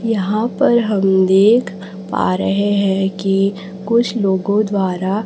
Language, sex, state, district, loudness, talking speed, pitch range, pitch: Hindi, female, Chhattisgarh, Raipur, -16 LUFS, 125 wpm, 190-215 Hz, 195 Hz